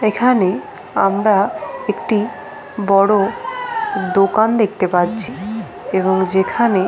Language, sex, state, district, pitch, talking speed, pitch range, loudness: Bengali, female, West Bengal, Paschim Medinipur, 210 Hz, 85 wpm, 195-230 Hz, -17 LUFS